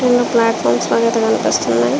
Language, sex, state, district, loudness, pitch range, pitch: Telugu, female, Andhra Pradesh, Srikakulam, -15 LUFS, 225-245 Hz, 230 Hz